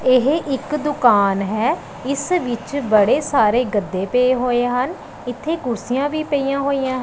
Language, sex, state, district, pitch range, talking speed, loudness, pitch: Punjabi, female, Punjab, Pathankot, 235-285 Hz, 155 wpm, -19 LUFS, 255 Hz